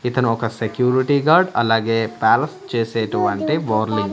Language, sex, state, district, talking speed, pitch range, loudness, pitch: Telugu, male, Andhra Pradesh, Manyam, 100 wpm, 110-130 Hz, -18 LUFS, 115 Hz